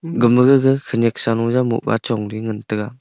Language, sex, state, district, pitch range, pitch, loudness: Wancho, male, Arunachal Pradesh, Longding, 115-130 Hz, 115 Hz, -17 LUFS